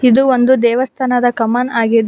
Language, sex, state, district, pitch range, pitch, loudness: Kannada, female, Karnataka, Bangalore, 235-255 Hz, 245 Hz, -13 LUFS